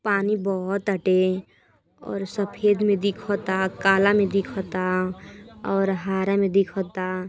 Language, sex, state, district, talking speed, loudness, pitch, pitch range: Bhojpuri, female, Uttar Pradesh, Gorakhpur, 105 wpm, -23 LUFS, 195 Hz, 190-200 Hz